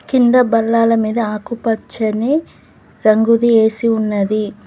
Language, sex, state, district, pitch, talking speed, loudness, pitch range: Telugu, female, Telangana, Mahabubabad, 225 Hz, 90 wpm, -15 LUFS, 215-235 Hz